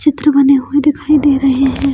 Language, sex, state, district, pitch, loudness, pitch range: Hindi, female, Chhattisgarh, Bilaspur, 280 Hz, -12 LUFS, 270-295 Hz